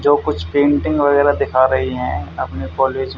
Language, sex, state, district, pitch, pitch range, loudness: Hindi, male, Haryana, Charkhi Dadri, 130 Hz, 90-145 Hz, -17 LUFS